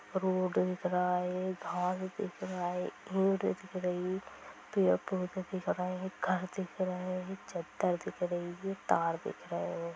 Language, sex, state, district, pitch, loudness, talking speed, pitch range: Hindi, female, Bihar, Sitamarhi, 185 Hz, -35 LUFS, 170 wpm, 180-185 Hz